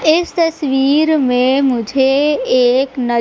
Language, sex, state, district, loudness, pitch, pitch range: Hindi, female, Madhya Pradesh, Katni, -14 LUFS, 270 Hz, 255-300 Hz